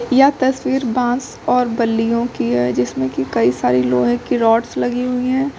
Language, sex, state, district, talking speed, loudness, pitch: Hindi, female, Uttar Pradesh, Lucknow, 180 wpm, -17 LUFS, 235 Hz